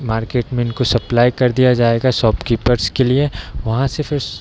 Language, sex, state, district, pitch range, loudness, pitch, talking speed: Hindi, male, Bihar, East Champaran, 115-130 Hz, -16 LUFS, 125 Hz, 205 wpm